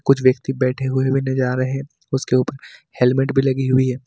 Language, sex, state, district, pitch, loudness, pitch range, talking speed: Hindi, male, Jharkhand, Ranchi, 130 Hz, -19 LUFS, 130-135 Hz, 235 wpm